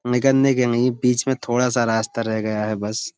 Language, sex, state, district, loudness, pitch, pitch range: Hindi, male, Uttar Pradesh, Budaun, -20 LUFS, 120 Hz, 110-125 Hz